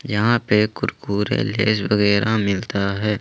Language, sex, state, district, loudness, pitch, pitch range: Hindi, male, Jharkhand, Ranchi, -20 LUFS, 105 Hz, 100-110 Hz